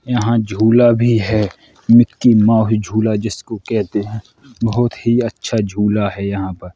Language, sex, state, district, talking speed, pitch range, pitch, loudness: Hindi, male, Uttar Pradesh, Hamirpur, 150 wpm, 105-120 Hz, 110 Hz, -15 LUFS